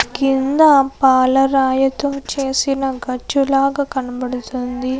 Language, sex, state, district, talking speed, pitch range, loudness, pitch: Telugu, female, Andhra Pradesh, Anantapur, 60 wpm, 255-275 Hz, -16 LUFS, 270 Hz